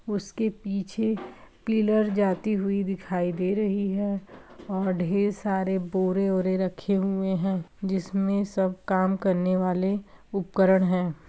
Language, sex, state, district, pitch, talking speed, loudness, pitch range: Hindi, female, Bihar, Kishanganj, 195 Hz, 130 wpm, -26 LUFS, 185-200 Hz